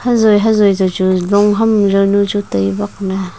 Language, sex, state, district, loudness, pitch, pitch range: Wancho, female, Arunachal Pradesh, Longding, -13 LUFS, 200 Hz, 190-210 Hz